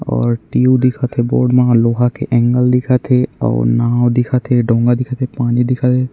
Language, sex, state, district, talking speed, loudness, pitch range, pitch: Chhattisgarhi, male, Chhattisgarh, Raigarh, 205 wpm, -14 LUFS, 120-125 Hz, 125 Hz